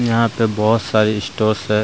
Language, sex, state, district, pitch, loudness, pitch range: Hindi, male, Bihar, Vaishali, 110 Hz, -17 LUFS, 105-115 Hz